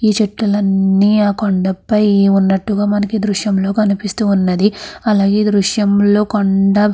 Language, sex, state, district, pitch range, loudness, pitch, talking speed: Telugu, female, Andhra Pradesh, Krishna, 195-210 Hz, -14 LUFS, 205 Hz, 145 wpm